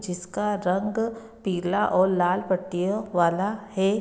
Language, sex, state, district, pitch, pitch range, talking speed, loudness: Hindi, female, Bihar, Sitamarhi, 190 Hz, 180-210 Hz, 120 wpm, -25 LUFS